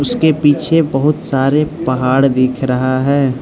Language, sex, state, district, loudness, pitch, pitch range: Hindi, male, Arunachal Pradesh, Lower Dibang Valley, -14 LUFS, 135 Hz, 130-150 Hz